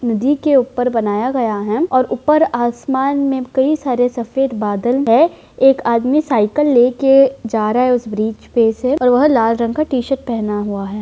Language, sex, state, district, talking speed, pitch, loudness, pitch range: Hindi, female, Bihar, Vaishali, 190 wpm, 250 Hz, -15 LUFS, 225-270 Hz